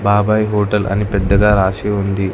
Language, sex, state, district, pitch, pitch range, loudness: Telugu, male, Telangana, Hyderabad, 100 Hz, 100-105 Hz, -15 LUFS